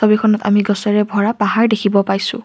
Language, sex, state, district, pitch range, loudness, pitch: Assamese, female, Assam, Kamrup Metropolitan, 205-220 Hz, -15 LUFS, 210 Hz